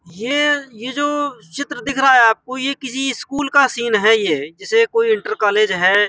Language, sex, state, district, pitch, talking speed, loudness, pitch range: Hindi, male, Uttar Pradesh, Hamirpur, 265 Hz, 195 wpm, -17 LUFS, 220-290 Hz